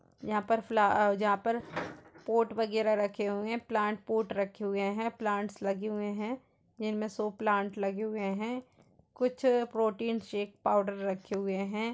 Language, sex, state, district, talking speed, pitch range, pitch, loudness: Hindi, female, Uttar Pradesh, Jalaun, 140 wpm, 205-225 Hz, 215 Hz, -32 LUFS